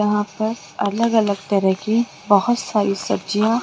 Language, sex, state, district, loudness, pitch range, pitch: Hindi, female, Rajasthan, Jaipur, -20 LUFS, 200-225 Hz, 210 Hz